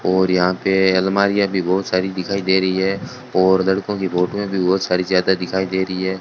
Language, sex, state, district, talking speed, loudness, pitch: Hindi, male, Rajasthan, Bikaner, 220 wpm, -18 LUFS, 95 Hz